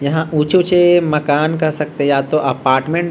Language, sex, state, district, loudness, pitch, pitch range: Hindi, male, Bihar, Vaishali, -15 LUFS, 155 Hz, 145-165 Hz